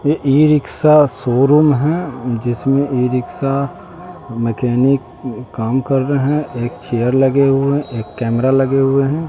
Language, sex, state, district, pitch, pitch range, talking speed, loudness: Hindi, male, Bihar, West Champaran, 135 Hz, 125-145 Hz, 140 wpm, -15 LUFS